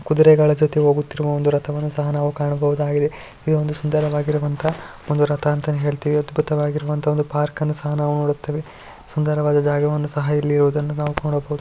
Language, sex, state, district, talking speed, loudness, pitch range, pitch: Kannada, male, Karnataka, Shimoga, 140 wpm, -20 LUFS, 145-150 Hz, 150 Hz